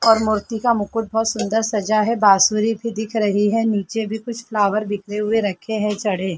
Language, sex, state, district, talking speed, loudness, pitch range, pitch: Hindi, female, Uttar Pradesh, Jalaun, 205 wpm, -19 LUFS, 205-225 Hz, 215 Hz